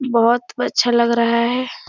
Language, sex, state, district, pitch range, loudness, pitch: Hindi, female, Bihar, Supaul, 235-245 Hz, -17 LUFS, 235 Hz